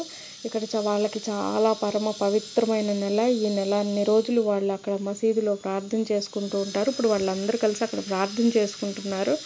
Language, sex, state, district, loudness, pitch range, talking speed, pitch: Telugu, male, Telangana, Karimnagar, -25 LUFS, 200-225 Hz, 125 wpm, 210 Hz